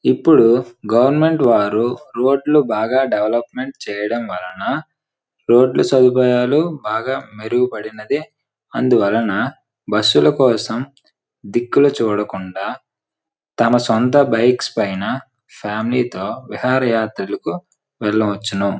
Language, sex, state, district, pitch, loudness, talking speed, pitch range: Telugu, male, Andhra Pradesh, Srikakulam, 120 Hz, -17 LUFS, 85 wpm, 105-130 Hz